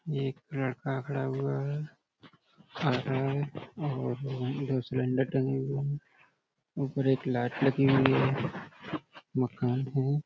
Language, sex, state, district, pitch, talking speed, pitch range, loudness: Hindi, male, Uttar Pradesh, Budaun, 135 Hz, 140 wpm, 130-145 Hz, -31 LUFS